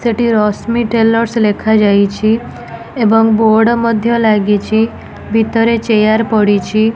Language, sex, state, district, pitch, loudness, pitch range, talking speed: Odia, female, Odisha, Nuapada, 220 Hz, -12 LUFS, 215-230 Hz, 105 wpm